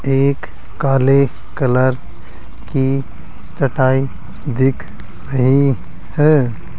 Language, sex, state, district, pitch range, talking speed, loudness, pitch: Hindi, male, Rajasthan, Jaipur, 95-135 Hz, 70 wpm, -16 LUFS, 130 Hz